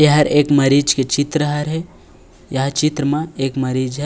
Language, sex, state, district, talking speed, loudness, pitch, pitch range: Chhattisgarhi, male, Chhattisgarh, Raigarh, 175 wpm, -17 LUFS, 145 Hz, 135-150 Hz